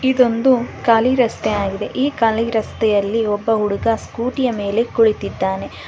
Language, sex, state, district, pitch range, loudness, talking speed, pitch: Kannada, female, Karnataka, Bangalore, 205-245 Hz, -18 LUFS, 130 wpm, 225 Hz